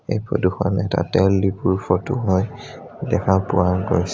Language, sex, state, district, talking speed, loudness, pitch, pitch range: Assamese, male, Assam, Sonitpur, 160 wpm, -20 LUFS, 95 Hz, 95-110 Hz